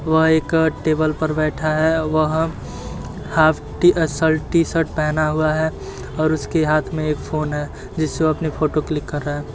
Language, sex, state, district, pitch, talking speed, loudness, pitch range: Hindi, male, Uttar Pradesh, Jyotiba Phule Nagar, 155 Hz, 180 wpm, -19 LUFS, 155-160 Hz